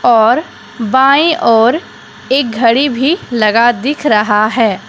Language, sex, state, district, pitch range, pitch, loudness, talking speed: Hindi, female, Jharkhand, Deoghar, 225-275 Hz, 240 Hz, -11 LUFS, 120 wpm